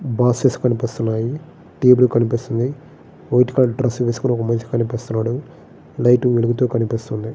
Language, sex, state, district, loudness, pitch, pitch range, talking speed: Telugu, male, Andhra Pradesh, Srikakulam, -18 LUFS, 120 Hz, 115-125 Hz, 100 wpm